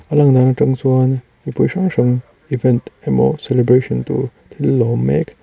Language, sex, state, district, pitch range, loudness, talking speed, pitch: Mizo, male, Mizoram, Aizawl, 120-135 Hz, -16 LUFS, 175 wpm, 130 Hz